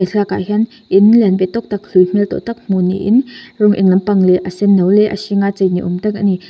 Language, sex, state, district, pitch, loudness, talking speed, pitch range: Mizo, female, Mizoram, Aizawl, 200 Hz, -14 LUFS, 285 wpm, 185-210 Hz